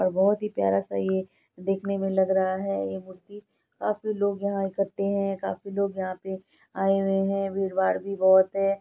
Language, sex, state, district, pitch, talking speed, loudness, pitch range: Hindi, female, Bihar, Saharsa, 195 Hz, 205 wpm, -26 LUFS, 190-195 Hz